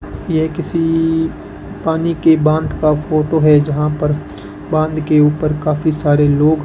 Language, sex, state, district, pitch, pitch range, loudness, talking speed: Hindi, male, Rajasthan, Bikaner, 155 Hz, 150-160 Hz, -15 LUFS, 155 wpm